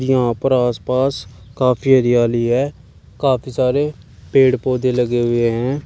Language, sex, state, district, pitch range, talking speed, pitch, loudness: Hindi, male, Uttar Pradesh, Shamli, 120-130 Hz, 135 wpm, 125 Hz, -17 LUFS